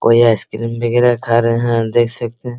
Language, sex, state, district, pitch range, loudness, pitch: Hindi, male, Bihar, Araria, 115-120 Hz, -15 LUFS, 120 Hz